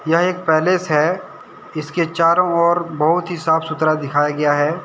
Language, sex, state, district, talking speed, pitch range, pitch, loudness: Hindi, male, Jharkhand, Deoghar, 175 wpm, 155-170 Hz, 160 Hz, -17 LUFS